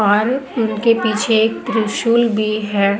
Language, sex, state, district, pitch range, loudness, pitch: Hindi, female, Maharashtra, Gondia, 215-230 Hz, -16 LUFS, 220 Hz